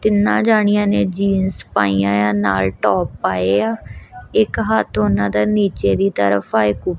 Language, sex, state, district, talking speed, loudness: Punjabi, female, Punjab, Kapurthala, 180 wpm, -17 LUFS